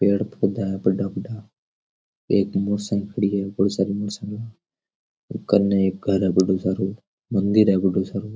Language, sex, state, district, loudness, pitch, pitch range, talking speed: Rajasthani, male, Rajasthan, Churu, -22 LUFS, 100 Hz, 95-100 Hz, 170 wpm